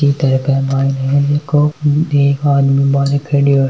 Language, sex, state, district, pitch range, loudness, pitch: Hindi, male, Rajasthan, Nagaur, 135-145 Hz, -14 LUFS, 140 Hz